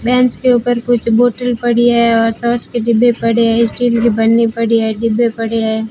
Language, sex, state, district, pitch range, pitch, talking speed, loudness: Hindi, female, Rajasthan, Bikaner, 230-240 Hz, 235 Hz, 215 wpm, -13 LUFS